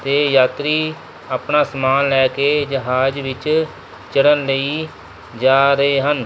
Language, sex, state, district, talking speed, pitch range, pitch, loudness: Punjabi, male, Punjab, Kapurthala, 125 wpm, 135-150 Hz, 140 Hz, -17 LUFS